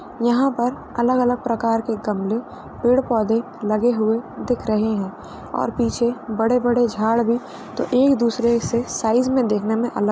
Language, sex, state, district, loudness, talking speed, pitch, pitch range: Hindi, female, Uttar Pradesh, Varanasi, -20 LUFS, 190 wpm, 235 Hz, 220-245 Hz